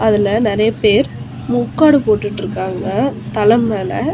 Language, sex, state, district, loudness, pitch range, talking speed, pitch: Tamil, female, Tamil Nadu, Chennai, -15 LUFS, 170-220 Hz, 115 wpm, 210 Hz